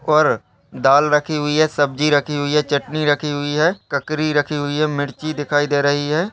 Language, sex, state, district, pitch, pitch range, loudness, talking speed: Hindi, male, Chhattisgarh, Bastar, 150 Hz, 145-155 Hz, -18 LUFS, 210 wpm